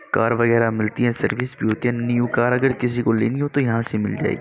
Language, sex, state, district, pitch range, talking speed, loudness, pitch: Hindi, male, Uttar Pradesh, Gorakhpur, 115-125 Hz, 230 wpm, -20 LUFS, 120 Hz